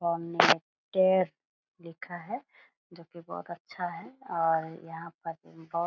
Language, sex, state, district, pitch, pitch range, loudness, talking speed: Hindi, female, Bihar, Purnia, 170 Hz, 165-175 Hz, -30 LUFS, 135 wpm